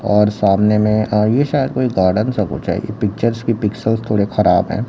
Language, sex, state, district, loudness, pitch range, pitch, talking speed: Hindi, male, Chhattisgarh, Raipur, -16 LUFS, 105-115 Hz, 105 Hz, 220 wpm